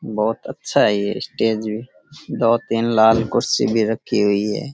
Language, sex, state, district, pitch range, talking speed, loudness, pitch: Rajasthani, male, Rajasthan, Churu, 105-115 Hz, 175 wpm, -19 LUFS, 110 Hz